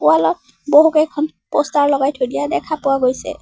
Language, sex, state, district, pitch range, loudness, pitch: Assamese, female, Assam, Sonitpur, 260-300 Hz, -16 LUFS, 285 Hz